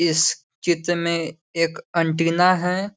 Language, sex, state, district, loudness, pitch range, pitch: Hindi, male, Bihar, Sitamarhi, -21 LUFS, 165-175 Hz, 170 Hz